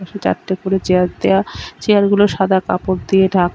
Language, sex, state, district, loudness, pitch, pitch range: Bengali, female, West Bengal, Kolkata, -16 LUFS, 190 Hz, 185-200 Hz